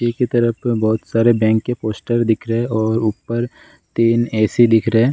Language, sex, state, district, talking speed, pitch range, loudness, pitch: Hindi, male, Bihar, Gaya, 185 wpm, 110-120 Hz, -17 LUFS, 115 Hz